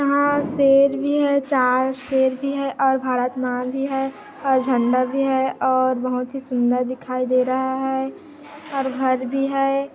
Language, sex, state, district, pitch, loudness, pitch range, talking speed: Hindi, female, Chhattisgarh, Kabirdham, 265 Hz, -20 LUFS, 255-275 Hz, 175 wpm